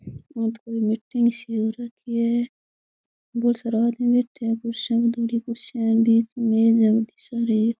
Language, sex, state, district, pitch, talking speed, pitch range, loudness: Rajasthani, female, Rajasthan, Churu, 230 Hz, 185 wpm, 225-235 Hz, -23 LUFS